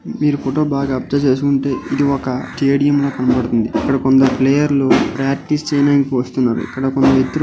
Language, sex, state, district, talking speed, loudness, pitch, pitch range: Telugu, male, Karnataka, Raichur, 180 wpm, -16 LUFS, 135 Hz, 130-140 Hz